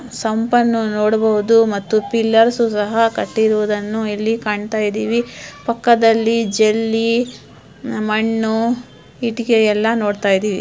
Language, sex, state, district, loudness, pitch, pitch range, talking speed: Kannada, female, Karnataka, Dharwad, -17 LUFS, 225 Hz, 215-230 Hz, 90 wpm